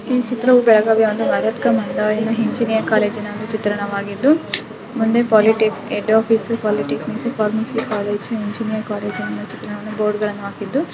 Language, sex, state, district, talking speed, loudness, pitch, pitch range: Kannada, female, Karnataka, Belgaum, 125 wpm, -18 LUFS, 220 Hz, 210-225 Hz